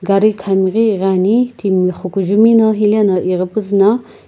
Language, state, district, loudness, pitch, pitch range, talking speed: Sumi, Nagaland, Kohima, -13 LUFS, 200 Hz, 190-215 Hz, 140 wpm